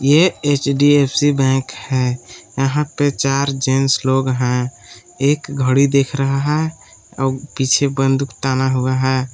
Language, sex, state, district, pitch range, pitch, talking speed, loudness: Hindi, male, Jharkhand, Palamu, 130-145 Hz, 135 Hz, 135 wpm, -17 LUFS